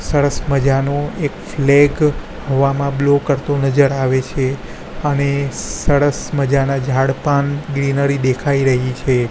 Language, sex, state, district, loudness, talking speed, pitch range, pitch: Gujarati, male, Gujarat, Gandhinagar, -16 LUFS, 120 wpm, 135-145 Hz, 140 Hz